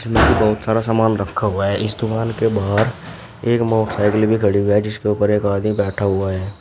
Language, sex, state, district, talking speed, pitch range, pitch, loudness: Hindi, male, Uttar Pradesh, Shamli, 215 wpm, 100-110 Hz, 105 Hz, -18 LUFS